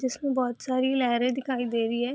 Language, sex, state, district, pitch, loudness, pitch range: Hindi, female, Bihar, Saharsa, 255 Hz, -27 LUFS, 240-260 Hz